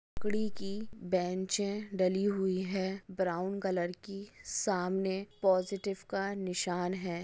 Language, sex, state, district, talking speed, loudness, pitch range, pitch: Hindi, female, Bihar, Muzaffarpur, 115 wpm, -34 LUFS, 185-200 Hz, 190 Hz